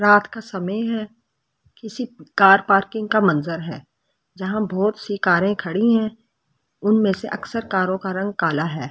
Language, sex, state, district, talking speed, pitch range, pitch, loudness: Hindi, female, Delhi, New Delhi, 160 wpm, 185-220 Hz, 205 Hz, -20 LUFS